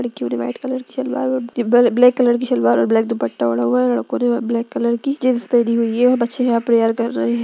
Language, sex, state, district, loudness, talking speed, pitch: Hindi, female, Bihar, Gaya, -17 LUFS, 260 wpm, 235 Hz